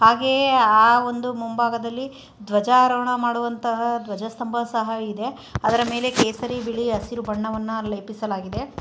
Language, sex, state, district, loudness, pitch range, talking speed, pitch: Kannada, female, Karnataka, Chamarajanagar, -22 LUFS, 220-245 Hz, 110 wpm, 235 Hz